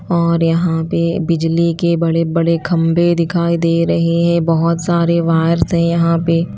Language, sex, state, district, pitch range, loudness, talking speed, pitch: Hindi, female, Chhattisgarh, Raipur, 165-170 Hz, -15 LUFS, 165 wpm, 170 Hz